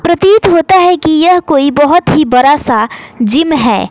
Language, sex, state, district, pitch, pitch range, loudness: Hindi, female, Bihar, West Champaran, 310 Hz, 275-350 Hz, -9 LUFS